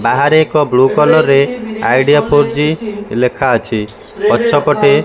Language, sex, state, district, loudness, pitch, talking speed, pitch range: Odia, male, Odisha, Malkangiri, -12 LUFS, 145 Hz, 140 wpm, 130-155 Hz